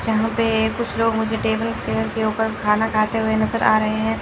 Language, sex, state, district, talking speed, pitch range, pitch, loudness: Hindi, male, Chandigarh, Chandigarh, 230 wpm, 220-225 Hz, 220 Hz, -20 LUFS